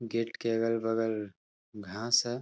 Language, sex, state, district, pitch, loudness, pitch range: Hindi, male, Bihar, Darbhanga, 115 Hz, -31 LUFS, 110-115 Hz